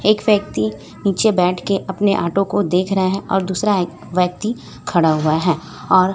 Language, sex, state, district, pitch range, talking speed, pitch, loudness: Hindi, female, Chhattisgarh, Raipur, 175-200 Hz, 185 wpm, 190 Hz, -18 LUFS